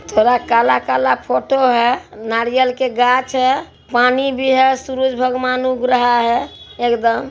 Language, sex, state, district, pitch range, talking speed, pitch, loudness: Hindi, male, Bihar, Araria, 240-260 Hz, 140 wpm, 250 Hz, -16 LUFS